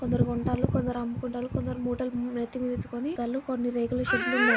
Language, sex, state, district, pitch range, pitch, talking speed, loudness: Telugu, female, Andhra Pradesh, Guntur, 240-250 Hz, 245 Hz, 185 wpm, -29 LUFS